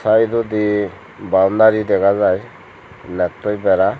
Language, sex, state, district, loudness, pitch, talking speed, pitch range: Chakma, male, Tripura, Unakoti, -16 LUFS, 105 Hz, 90 wpm, 95-110 Hz